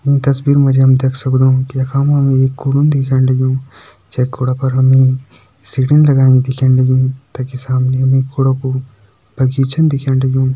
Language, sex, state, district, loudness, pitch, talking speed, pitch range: Hindi, male, Uttarakhand, Tehri Garhwal, -13 LUFS, 130 Hz, 180 wpm, 130-135 Hz